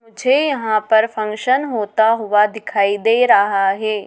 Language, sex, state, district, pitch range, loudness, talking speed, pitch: Hindi, female, Madhya Pradesh, Dhar, 210-230 Hz, -16 LUFS, 145 wpm, 220 Hz